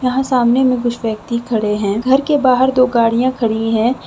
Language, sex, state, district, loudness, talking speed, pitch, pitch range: Hindi, female, Jharkhand, Deoghar, -15 LUFS, 205 wpm, 240 Hz, 225-255 Hz